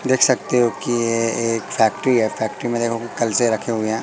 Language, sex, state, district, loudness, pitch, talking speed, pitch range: Hindi, male, Madhya Pradesh, Katni, -19 LUFS, 115 Hz, 225 wpm, 115-120 Hz